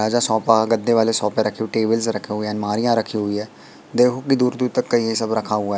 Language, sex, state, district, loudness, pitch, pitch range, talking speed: Hindi, male, Madhya Pradesh, Katni, -20 LUFS, 110 Hz, 105-115 Hz, 240 wpm